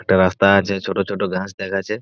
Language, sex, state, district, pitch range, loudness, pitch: Bengali, male, West Bengal, Purulia, 95-100 Hz, -19 LUFS, 100 Hz